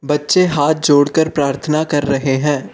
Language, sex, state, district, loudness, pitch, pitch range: Hindi, male, Arunachal Pradesh, Lower Dibang Valley, -15 LUFS, 145 Hz, 140-155 Hz